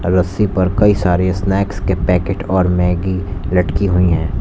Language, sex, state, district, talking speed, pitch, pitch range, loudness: Hindi, male, Uttar Pradesh, Lalitpur, 165 wpm, 95 Hz, 90-95 Hz, -16 LUFS